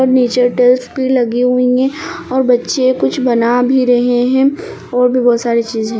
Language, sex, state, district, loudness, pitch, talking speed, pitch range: Hindi, female, Uttar Pradesh, Lucknow, -13 LUFS, 250 Hz, 200 wpm, 245-260 Hz